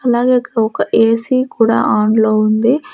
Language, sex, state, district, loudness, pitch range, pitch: Telugu, female, Andhra Pradesh, Sri Satya Sai, -13 LUFS, 220-250 Hz, 230 Hz